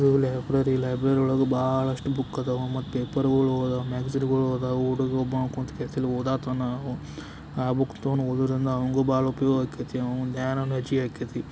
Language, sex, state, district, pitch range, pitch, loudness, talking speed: Kannada, male, Karnataka, Belgaum, 130-135 Hz, 130 Hz, -26 LUFS, 135 wpm